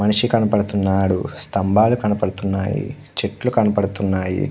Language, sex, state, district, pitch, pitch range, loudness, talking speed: Telugu, male, Andhra Pradesh, Krishna, 100 Hz, 95-105 Hz, -19 LUFS, 120 wpm